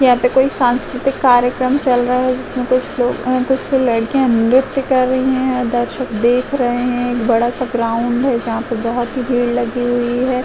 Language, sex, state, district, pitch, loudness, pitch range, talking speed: Hindi, female, Uttar Pradesh, Gorakhpur, 250 Hz, -16 LUFS, 240-260 Hz, 190 wpm